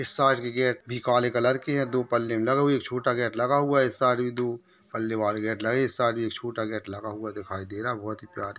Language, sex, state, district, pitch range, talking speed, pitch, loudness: Hindi, male, Maharashtra, Nagpur, 110-130 Hz, 285 wpm, 120 Hz, -26 LUFS